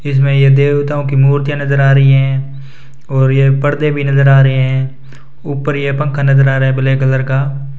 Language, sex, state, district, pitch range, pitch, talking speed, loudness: Hindi, male, Rajasthan, Bikaner, 135-140 Hz, 135 Hz, 200 wpm, -12 LUFS